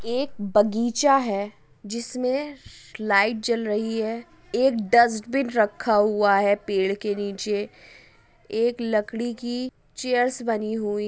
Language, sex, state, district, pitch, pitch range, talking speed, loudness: Hindi, female, Uttar Pradesh, Jyotiba Phule Nagar, 225 Hz, 205-240 Hz, 125 wpm, -23 LUFS